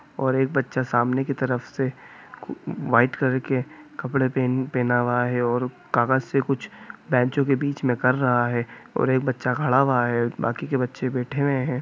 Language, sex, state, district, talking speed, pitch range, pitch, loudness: Hindi, male, Bihar, Gopalganj, 200 wpm, 125-135 Hz, 130 Hz, -23 LUFS